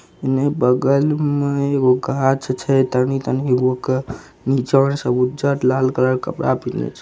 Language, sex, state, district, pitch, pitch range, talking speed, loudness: Maithili, male, Bihar, Begusarai, 135 Hz, 130-140 Hz, 155 wpm, -18 LUFS